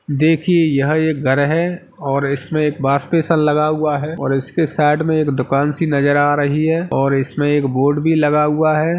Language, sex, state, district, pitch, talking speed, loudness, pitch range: Hindi, male, Uttar Pradesh, Hamirpur, 150 Hz, 220 wpm, -16 LUFS, 140-160 Hz